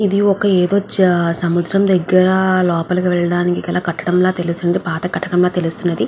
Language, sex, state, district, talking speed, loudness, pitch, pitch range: Telugu, female, Andhra Pradesh, Guntur, 140 wpm, -16 LUFS, 180 Hz, 175-185 Hz